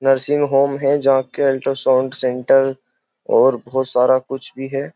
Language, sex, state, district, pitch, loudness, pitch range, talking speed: Hindi, male, Uttar Pradesh, Jyotiba Phule Nagar, 135 Hz, -17 LUFS, 130-135 Hz, 170 wpm